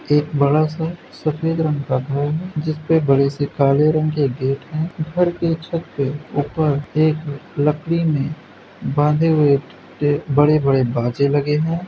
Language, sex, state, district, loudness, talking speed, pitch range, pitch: Hindi, male, Uttar Pradesh, Budaun, -19 LUFS, 155 wpm, 140-160 Hz, 150 Hz